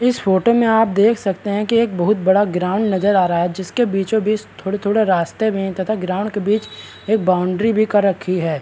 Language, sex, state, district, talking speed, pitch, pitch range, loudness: Hindi, male, Bihar, Araria, 215 wpm, 205 Hz, 190-215 Hz, -17 LUFS